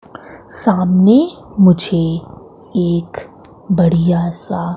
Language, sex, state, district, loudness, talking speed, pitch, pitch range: Hindi, female, Madhya Pradesh, Katni, -14 LUFS, 65 wpm, 180 Hz, 170-190 Hz